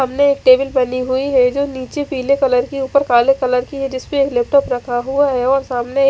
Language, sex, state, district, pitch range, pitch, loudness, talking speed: Hindi, female, Odisha, Khordha, 255-275 Hz, 265 Hz, -16 LUFS, 245 wpm